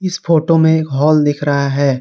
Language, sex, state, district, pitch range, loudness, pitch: Hindi, male, Jharkhand, Garhwa, 140-165 Hz, -13 LUFS, 155 Hz